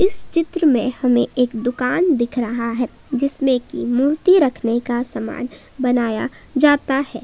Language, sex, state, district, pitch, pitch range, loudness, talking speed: Hindi, female, Jharkhand, Palamu, 255 Hz, 240-290 Hz, -19 LUFS, 150 wpm